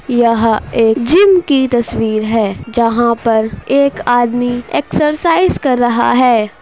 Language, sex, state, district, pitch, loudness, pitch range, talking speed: Hindi, female, Bihar, Darbhanga, 240 Hz, -13 LUFS, 230-265 Hz, 125 wpm